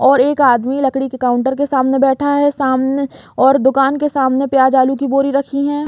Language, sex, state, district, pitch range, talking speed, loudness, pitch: Hindi, female, Chhattisgarh, Raigarh, 265-280 Hz, 215 wpm, -14 LUFS, 270 Hz